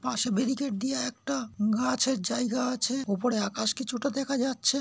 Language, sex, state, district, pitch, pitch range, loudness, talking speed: Bengali, male, West Bengal, North 24 Parganas, 250 Hz, 230-265 Hz, -29 LUFS, 175 wpm